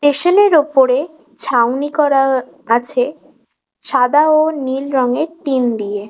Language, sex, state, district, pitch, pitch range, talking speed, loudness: Bengali, female, West Bengal, Kolkata, 275 Hz, 250-305 Hz, 120 wpm, -15 LUFS